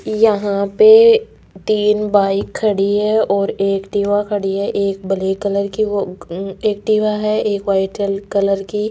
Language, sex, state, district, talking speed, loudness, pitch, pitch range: Hindi, female, Rajasthan, Jaipur, 150 wpm, -16 LUFS, 200 Hz, 195-215 Hz